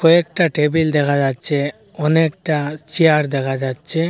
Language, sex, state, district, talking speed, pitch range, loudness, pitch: Bengali, male, Assam, Hailakandi, 115 wpm, 145-165 Hz, -17 LUFS, 150 Hz